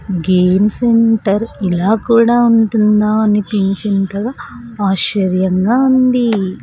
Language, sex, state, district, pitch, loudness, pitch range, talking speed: Telugu, female, Andhra Pradesh, Sri Satya Sai, 210 Hz, -13 LUFS, 195-230 Hz, 70 wpm